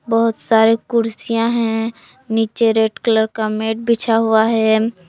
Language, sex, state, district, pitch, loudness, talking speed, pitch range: Hindi, female, Jharkhand, Palamu, 225 Hz, -17 LUFS, 140 wpm, 220-230 Hz